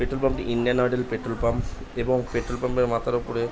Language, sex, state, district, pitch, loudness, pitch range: Bengali, male, West Bengal, Dakshin Dinajpur, 120 Hz, -25 LUFS, 115-125 Hz